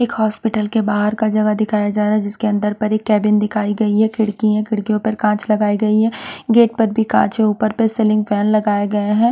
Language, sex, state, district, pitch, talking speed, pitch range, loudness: Hindi, female, Punjab, Pathankot, 215 Hz, 245 wpm, 210-220 Hz, -17 LUFS